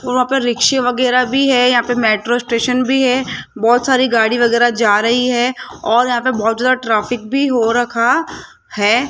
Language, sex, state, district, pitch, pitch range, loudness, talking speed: Hindi, female, Rajasthan, Jaipur, 245 Hz, 235-255 Hz, -14 LUFS, 190 wpm